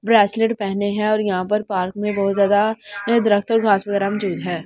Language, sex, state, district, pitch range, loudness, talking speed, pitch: Hindi, female, Delhi, New Delhi, 200-215 Hz, -19 LUFS, 205 wpm, 205 Hz